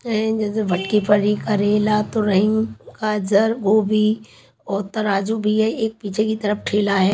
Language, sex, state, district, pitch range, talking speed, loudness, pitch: Hindi, female, Chhattisgarh, Raipur, 205-220 Hz, 125 wpm, -20 LUFS, 210 Hz